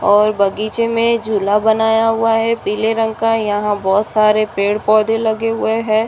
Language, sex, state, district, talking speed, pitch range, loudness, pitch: Hindi, female, Uttar Pradesh, Muzaffarnagar, 170 wpm, 210-225 Hz, -15 LUFS, 220 Hz